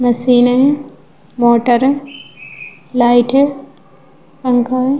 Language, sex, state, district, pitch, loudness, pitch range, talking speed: Hindi, female, Bihar, Vaishali, 255 Hz, -13 LUFS, 245-275 Hz, 70 wpm